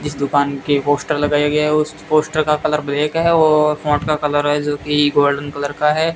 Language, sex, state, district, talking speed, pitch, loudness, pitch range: Hindi, male, Rajasthan, Bikaner, 235 wpm, 150 Hz, -17 LUFS, 145-150 Hz